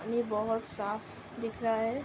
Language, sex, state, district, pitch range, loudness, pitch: Hindi, female, Uttar Pradesh, Ghazipur, 215-230 Hz, -34 LUFS, 225 Hz